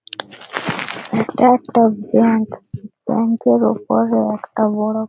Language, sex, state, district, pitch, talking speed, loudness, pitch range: Bengali, female, West Bengal, Purulia, 220 Hz, 105 wpm, -17 LUFS, 210-230 Hz